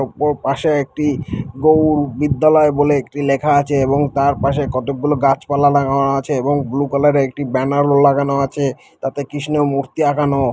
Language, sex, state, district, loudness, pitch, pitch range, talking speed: Bengali, male, West Bengal, Malda, -16 LUFS, 140 Hz, 135-145 Hz, 155 wpm